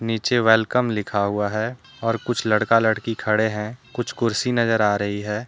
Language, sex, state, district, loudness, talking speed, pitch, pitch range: Hindi, male, Jharkhand, Deoghar, -21 LUFS, 185 wpm, 110 Hz, 105-120 Hz